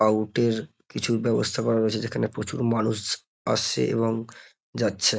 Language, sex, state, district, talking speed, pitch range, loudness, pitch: Bengali, male, West Bengal, North 24 Parganas, 150 wpm, 110-115 Hz, -25 LUFS, 115 Hz